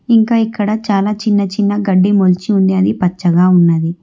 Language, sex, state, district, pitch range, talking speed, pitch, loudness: Telugu, female, Telangana, Hyderabad, 180-210 Hz, 150 wpm, 200 Hz, -13 LUFS